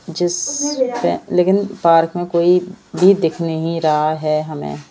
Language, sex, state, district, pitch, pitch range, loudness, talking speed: Hindi, female, Madhya Pradesh, Bhopal, 170 Hz, 160-190 Hz, -17 LUFS, 135 wpm